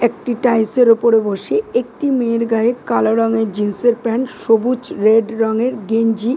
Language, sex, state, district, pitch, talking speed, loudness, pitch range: Bengali, female, West Bengal, Dakshin Dinajpur, 230 Hz, 160 wpm, -16 LUFS, 220-245 Hz